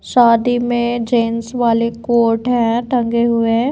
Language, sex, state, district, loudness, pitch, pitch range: Hindi, female, Bihar, Katihar, -15 LUFS, 235 Hz, 230-240 Hz